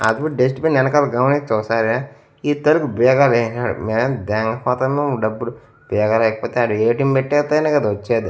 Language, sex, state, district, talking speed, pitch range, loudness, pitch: Telugu, male, Andhra Pradesh, Annamaya, 135 wpm, 115-145 Hz, -18 LUFS, 125 Hz